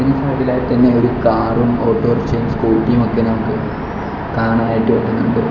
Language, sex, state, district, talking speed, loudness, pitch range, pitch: Malayalam, male, Kerala, Kollam, 120 wpm, -16 LUFS, 115-125 Hz, 115 Hz